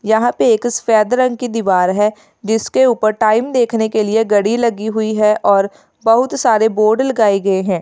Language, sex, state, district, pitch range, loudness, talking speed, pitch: Hindi, female, Uttar Pradesh, Lalitpur, 210-235 Hz, -14 LUFS, 190 wpm, 220 Hz